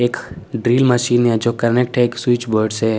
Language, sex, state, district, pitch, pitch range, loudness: Hindi, male, Chandigarh, Chandigarh, 120 Hz, 110-120 Hz, -16 LUFS